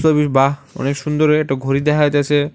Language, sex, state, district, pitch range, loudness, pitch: Bengali, male, Tripura, West Tripura, 140-150 Hz, -16 LUFS, 145 Hz